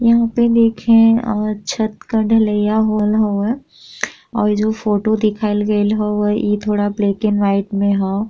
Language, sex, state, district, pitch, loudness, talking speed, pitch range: Bhojpuri, female, Uttar Pradesh, Deoria, 215 Hz, -16 LUFS, 165 wpm, 210-225 Hz